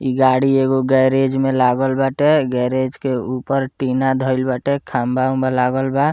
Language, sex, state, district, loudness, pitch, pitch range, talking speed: Bhojpuri, male, Bihar, Muzaffarpur, -17 LUFS, 130 Hz, 130-135 Hz, 155 wpm